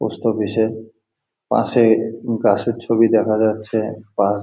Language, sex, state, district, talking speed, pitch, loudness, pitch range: Bengali, male, West Bengal, Jalpaiguri, 135 wpm, 110 Hz, -18 LUFS, 110-115 Hz